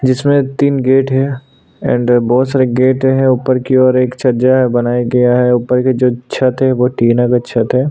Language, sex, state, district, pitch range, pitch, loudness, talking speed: Hindi, male, Chhattisgarh, Sukma, 125-130 Hz, 130 Hz, -12 LUFS, 210 wpm